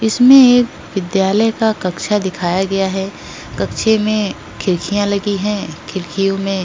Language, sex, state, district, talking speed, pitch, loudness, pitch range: Hindi, female, Uttar Pradesh, Etah, 135 wpm, 195 Hz, -15 LUFS, 190-215 Hz